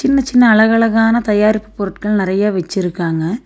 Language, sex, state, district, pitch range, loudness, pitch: Tamil, female, Tamil Nadu, Nilgiris, 190-225 Hz, -14 LUFS, 210 Hz